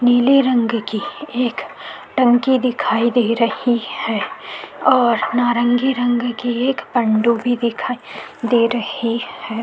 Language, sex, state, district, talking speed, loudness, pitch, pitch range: Hindi, female, Chhattisgarh, Korba, 120 wpm, -18 LUFS, 240 Hz, 235-250 Hz